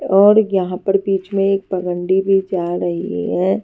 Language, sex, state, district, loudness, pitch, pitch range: Hindi, female, Maharashtra, Washim, -17 LUFS, 190 Hz, 180-195 Hz